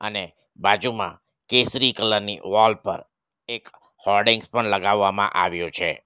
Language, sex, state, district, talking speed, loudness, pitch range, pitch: Gujarati, male, Gujarat, Valsad, 130 wpm, -21 LUFS, 100-115 Hz, 105 Hz